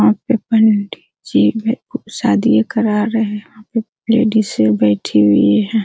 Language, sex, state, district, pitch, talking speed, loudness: Hindi, female, Bihar, Araria, 215 Hz, 145 wpm, -15 LUFS